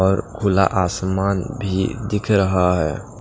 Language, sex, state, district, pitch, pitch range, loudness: Hindi, male, Maharashtra, Washim, 95 Hz, 95-105 Hz, -20 LUFS